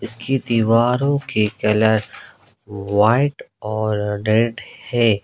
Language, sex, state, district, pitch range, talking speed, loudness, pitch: Hindi, male, Jharkhand, Ranchi, 105-120 Hz, 90 wpm, -19 LUFS, 110 Hz